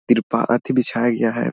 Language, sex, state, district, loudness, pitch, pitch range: Hindi, male, Bihar, Muzaffarpur, -19 LUFS, 115 Hz, 115-120 Hz